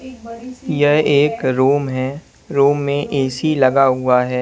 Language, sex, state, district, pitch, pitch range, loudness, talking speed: Hindi, male, Punjab, Kapurthala, 140 Hz, 130-150 Hz, -16 LUFS, 135 wpm